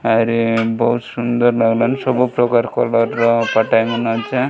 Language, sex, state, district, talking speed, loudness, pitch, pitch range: Odia, male, Odisha, Malkangiri, 105 wpm, -16 LUFS, 115 Hz, 115-120 Hz